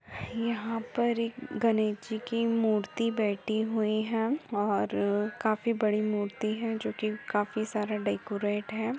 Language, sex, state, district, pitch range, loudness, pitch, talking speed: Hindi, female, Uttar Pradesh, Etah, 210-230 Hz, -30 LUFS, 220 Hz, 135 wpm